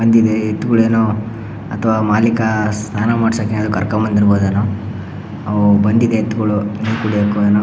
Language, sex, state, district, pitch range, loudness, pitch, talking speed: Kannada, male, Karnataka, Shimoga, 105-110 Hz, -15 LUFS, 110 Hz, 100 wpm